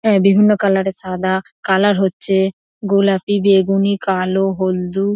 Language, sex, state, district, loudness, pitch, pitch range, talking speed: Bengali, female, West Bengal, North 24 Parganas, -16 LUFS, 195 Hz, 190-200 Hz, 140 wpm